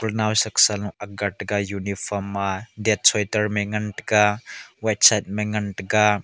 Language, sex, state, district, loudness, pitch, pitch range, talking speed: Wancho, male, Arunachal Pradesh, Longding, -21 LUFS, 105 Hz, 100-105 Hz, 175 wpm